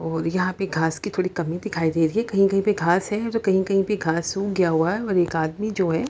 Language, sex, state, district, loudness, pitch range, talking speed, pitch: Hindi, female, Bihar, Lakhisarai, -22 LUFS, 165-200 Hz, 295 wpm, 185 Hz